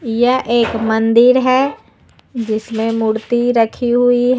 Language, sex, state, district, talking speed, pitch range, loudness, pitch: Hindi, female, Uttar Pradesh, Lucknow, 125 wpm, 225-245 Hz, -15 LUFS, 240 Hz